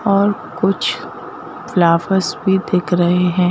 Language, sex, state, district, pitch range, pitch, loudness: Hindi, female, Madhya Pradesh, Bhopal, 180-250 Hz, 190 Hz, -16 LUFS